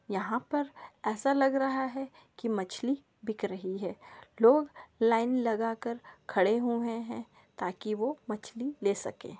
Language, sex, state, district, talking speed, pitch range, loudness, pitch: Magahi, female, Bihar, Samastipur, 155 wpm, 215-265 Hz, -31 LUFS, 235 Hz